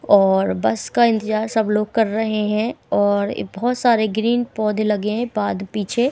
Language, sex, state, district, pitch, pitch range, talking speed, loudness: Hindi, female, Himachal Pradesh, Shimla, 215 Hz, 205-230 Hz, 185 wpm, -19 LUFS